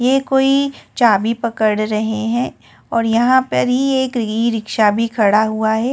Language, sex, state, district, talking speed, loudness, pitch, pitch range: Hindi, female, Delhi, New Delhi, 170 wpm, -16 LUFS, 230 Hz, 220-255 Hz